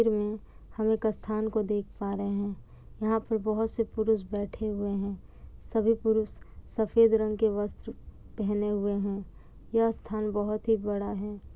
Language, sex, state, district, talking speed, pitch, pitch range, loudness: Hindi, female, Bihar, Kishanganj, 165 wpm, 215 Hz, 205-220 Hz, -30 LUFS